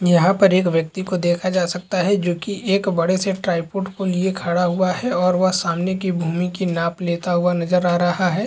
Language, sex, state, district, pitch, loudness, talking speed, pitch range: Hindi, male, Chhattisgarh, Balrampur, 180 Hz, -19 LUFS, 235 wpm, 175-190 Hz